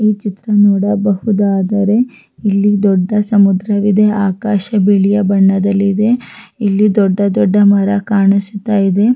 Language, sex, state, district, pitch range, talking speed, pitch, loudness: Kannada, female, Karnataka, Raichur, 200-210 Hz, 105 wpm, 205 Hz, -13 LUFS